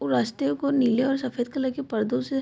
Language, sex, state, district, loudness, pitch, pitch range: Hindi, female, Bihar, Vaishali, -25 LUFS, 250 Hz, 220-270 Hz